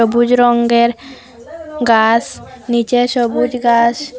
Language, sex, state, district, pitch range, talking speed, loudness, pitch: Bengali, female, Assam, Hailakandi, 235-250 Hz, 85 wpm, -13 LUFS, 240 Hz